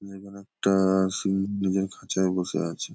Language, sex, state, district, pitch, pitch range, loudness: Bengali, male, West Bengal, Kolkata, 95 Hz, 95-100 Hz, -26 LUFS